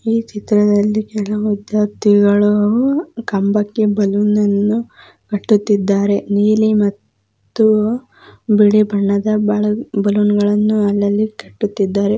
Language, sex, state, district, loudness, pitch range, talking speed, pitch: Kannada, female, Karnataka, Dakshina Kannada, -15 LUFS, 205-215 Hz, 80 wpm, 210 Hz